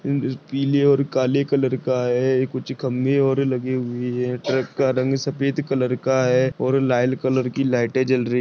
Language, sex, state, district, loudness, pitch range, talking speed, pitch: Hindi, male, Maharashtra, Dhule, -21 LUFS, 125-135 Hz, 185 wpm, 130 Hz